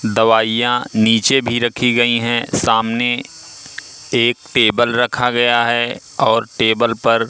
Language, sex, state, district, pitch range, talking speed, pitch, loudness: Hindi, male, Madhya Pradesh, Katni, 115-120 Hz, 125 wpm, 120 Hz, -15 LUFS